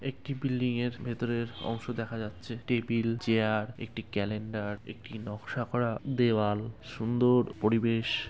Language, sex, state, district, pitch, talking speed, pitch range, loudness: Bengali, male, West Bengal, Kolkata, 115 Hz, 125 wpm, 110-120 Hz, -31 LUFS